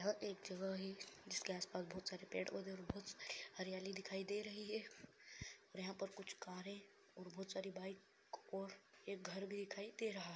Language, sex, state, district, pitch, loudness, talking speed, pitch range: Hindi, male, Bihar, Madhepura, 195 Hz, -49 LUFS, 205 wpm, 190-200 Hz